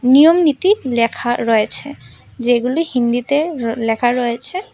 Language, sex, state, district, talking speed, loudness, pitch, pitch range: Bengali, female, Tripura, West Tripura, 100 wpm, -16 LUFS, 245 Hz, 235-305 Hz